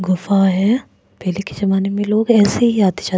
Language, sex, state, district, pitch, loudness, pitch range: Hindi, female, Goa, North and South Goa, 195 Hz, -16 LUFS, 190-210 Hz